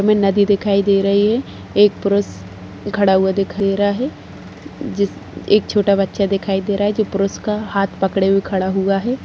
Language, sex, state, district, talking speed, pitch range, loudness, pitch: Hindi, female, Chhattisgarh, Jashpur, 205 wpm, 195-205 Hz, -17 LUFS, 200 Hz